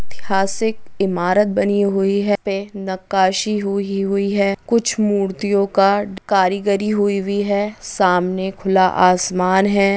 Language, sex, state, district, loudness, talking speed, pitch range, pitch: Hindi, female, Maharashtra, Dhule, -18 LUFS, 120 wpm, 190-205 Hz, 200 Hz